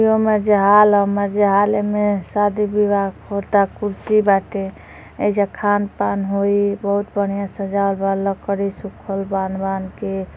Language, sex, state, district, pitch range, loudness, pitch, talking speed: Hindi, female, Uttar Pradesh, Deoria, 195-205 Hz, -18 LUFS, 200 Hz, 145 wpm